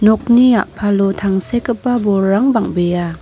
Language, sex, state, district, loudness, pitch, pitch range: Garo, female, Meghalaya, North Garo Hills, -14 LUFS, 205 Hz, 195-240 Hz